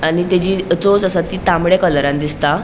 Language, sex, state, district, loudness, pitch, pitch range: Konkani, female, Goa, North and South Goa, -15 LUFS, 175 Hz, 150-185 Hz